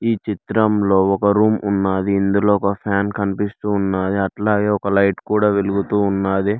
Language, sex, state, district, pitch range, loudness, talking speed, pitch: Telugu, male, Telangana, Hyderabad, 100-105 Hz, -18 LUFS, 145 wpm, 100 Hz